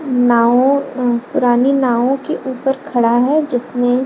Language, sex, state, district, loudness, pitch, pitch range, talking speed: Hindi, female, Bihar, Lakhisarai, -15 LUFS, 250 Hz, 245-270 Hz, 150 wpm